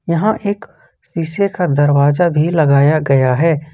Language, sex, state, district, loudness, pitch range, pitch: Hindi, male, Jharkhand, Ranchi, -14 LUFS, 145-175 Hz, 155 Hz